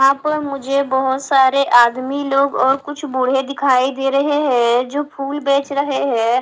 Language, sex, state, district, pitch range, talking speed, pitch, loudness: Hindi, female, Haryana, Charkhi Dadri, 265-280 Hz, 185 wpm, 275 Hz, -16 LUFS